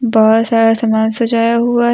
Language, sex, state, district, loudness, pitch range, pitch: Hindi, female, Jharkhand, Deoghar, -13 LUFS, 225-235 Hz, 230 Hz